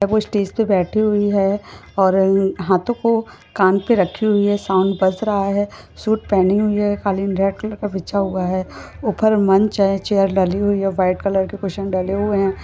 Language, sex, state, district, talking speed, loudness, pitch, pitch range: Hindi, female, Maharashtra, Nagpur, 205 wpm, -18 LUFS, 195 Hz, 190-210 Hz